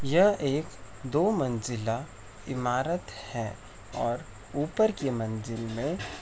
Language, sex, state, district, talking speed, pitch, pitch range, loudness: Hindi, male, Uttar Pradesh, Etah, 115 wpm, 120 Hz, 110-140 Hz, -30 LUFS